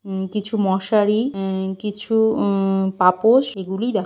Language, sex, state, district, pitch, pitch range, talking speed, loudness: Bengali, female, West Bengal, Purulia, 200 Hz, 190-220 Hz, 145 wpm, -19 LUFS